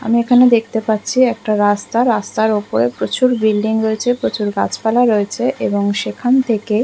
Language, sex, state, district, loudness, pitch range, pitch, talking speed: Bengali, female, West Bengal, Kolkata, -16 LUFS, 210-245 Hz, 220 Hz, 160 wpm